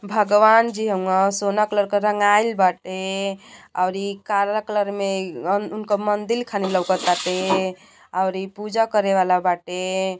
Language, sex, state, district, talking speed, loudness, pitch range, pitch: Bhojpuri, female, Uttar Pradesh, Gorakhpur, 120 wpm, -21 LUFS, 185-210 Hz, 200 Hz